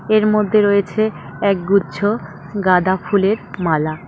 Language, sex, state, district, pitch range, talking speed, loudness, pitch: Bengali, female, West Bengal, Cooch Behar, 170-210 Hz, 105 wpm, -17 LUFS, 200 Hz